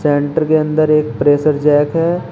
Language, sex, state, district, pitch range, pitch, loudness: Hindi, male, Uttar Pradesh, Shamli, 145-155 Hz, 150 Hz, -14 LUFS